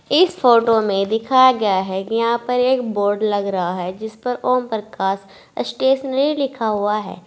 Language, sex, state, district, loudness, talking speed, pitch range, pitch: Hindi, female, Uttar Pradesh, Saharanpur, -18 LUFS, 175 wpm, 205-255 Hz, 225 Hz